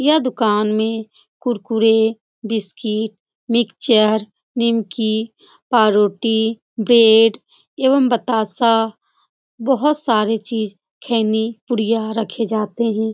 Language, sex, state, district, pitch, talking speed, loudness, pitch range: Hindi, female, Uttar Pradesh, Etah, 225 Hz, 85 wpm, -17 LUFS, 215-235 Hz